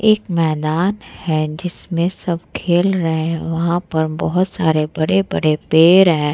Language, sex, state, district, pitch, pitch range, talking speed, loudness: Hindi, female, Bihar, Vaishali, 170 Hz, 160-185 Hz, 125 wpm, -17 LUFS